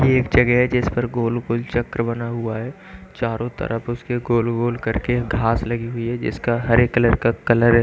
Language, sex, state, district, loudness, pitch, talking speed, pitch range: Hindi, male, Chandigarh, Chandigarh, -20 LUFS, 120 Hz, 200 wpm, 115-120 Hz